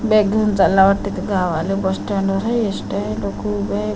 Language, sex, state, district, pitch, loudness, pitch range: Marathi, female, Maharashtra, Washim, 195 Hz, -18 LUFS, 160-205 Hz